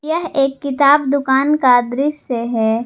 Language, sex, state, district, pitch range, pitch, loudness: Hindi, female, Jharkhand, Garhwa, 245-290 Hz, 275 Hz, -15 LUFS